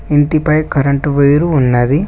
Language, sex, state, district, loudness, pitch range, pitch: Telugu, male, Telangana, Mahabubabad, -12 LUFS, 140-155 Hz, 145 Hz